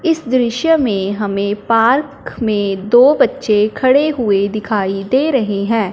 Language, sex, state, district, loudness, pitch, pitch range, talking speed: Hindi, female, Punjab, Fazilka, -15 LUFS, 225 Hz, 205-265 Hz, 140 wpm